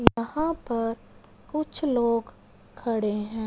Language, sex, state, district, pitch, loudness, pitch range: Hindi, male, Punjab, Fazilka, 230 Hz, -27 LUFS, 225-285 Hz